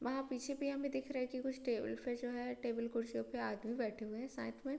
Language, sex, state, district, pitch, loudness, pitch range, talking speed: Hindi, female, Bihar, Gopalganj, 250 Hz, -42 LUFS, 235-265 Hz, 275 wpm